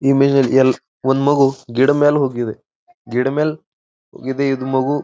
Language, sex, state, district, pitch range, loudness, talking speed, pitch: Kannada, male, Karnataka, Bijapur, 130-145 Hz, -17 LUFS, 120 wpm, 135 Hz